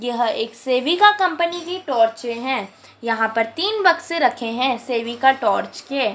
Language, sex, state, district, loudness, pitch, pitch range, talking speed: Hindi, female, Madhya Pradesh, Dhar, -19 LUFS, 250 Hz, 230-335 Hz, 155 wpm